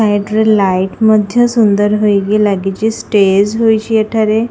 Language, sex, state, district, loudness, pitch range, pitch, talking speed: Odia, female, Odisha, Khordha, -12 LUFS, 200-220 Hz, 215 Hz, 120 wpm